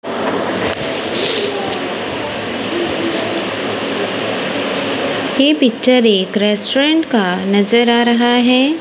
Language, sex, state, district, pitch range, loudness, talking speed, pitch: Hindi, female, Punjab, Kapurthala, 210-265 Hz, -15 LUFS, 60 wpm, 240 Hz